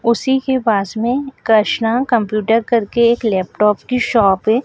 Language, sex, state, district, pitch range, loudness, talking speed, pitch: Hindi, female, Madhya Pradesh, Dhar, 215-245 Hz, -16 LUFS, 155 wpm, 230 Hz